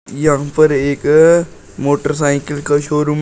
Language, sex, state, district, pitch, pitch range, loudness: Hindi, male, Uttar Pradesh, Shamli, 145 Hz, 145-150 Hz, -14 LUFS